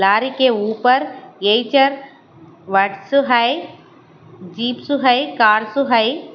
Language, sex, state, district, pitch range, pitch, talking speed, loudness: Hindi, female, Haryana, Charkhi Dadri, 200-265 Hz, 235 Hz, 95 wpm, -16 LUFS